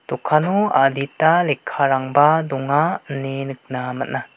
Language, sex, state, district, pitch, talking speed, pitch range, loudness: Garo, male, Meghalaya, West Garo Hills, 140 Hz, 95 wpm, 135-155 Hz, -19 LUFS